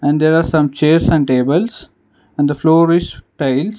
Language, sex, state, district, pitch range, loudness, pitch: English, male, Karnataka, Bangalore, 140-165 Hz, -14 LUFS, 155 Hz